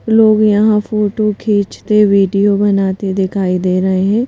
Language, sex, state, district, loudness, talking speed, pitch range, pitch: Hindi, female, Madhya Pradesh, Bhopal, -13 LUFS, 140 wpm, 195-215 Hz, 205 Hz